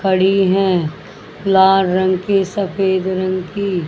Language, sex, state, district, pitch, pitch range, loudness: Hindi, female, Haryana, Jhajjar, 190 Hz, 185-195 Hz, -16 LUFS